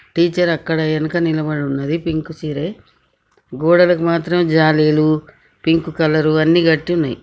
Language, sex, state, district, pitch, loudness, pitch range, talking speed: Telugu, female, Telangana, Nalgonda, 160 Hz, -16 LUFS, 155-170 Hz, 115 wpm